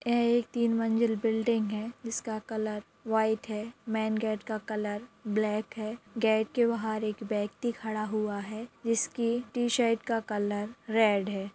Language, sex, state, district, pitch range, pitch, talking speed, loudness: Hindi, female, Jharkhand, Sahebganj, 215-230 Hz, 220 Hz, 155 wpm, -30 LUFS